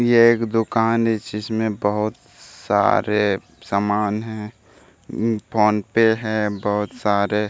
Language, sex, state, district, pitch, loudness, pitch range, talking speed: Hindi, male, Bihar, Jamui, 105 Hz, -20 LUFS, 105-115 Hz, 105 wpm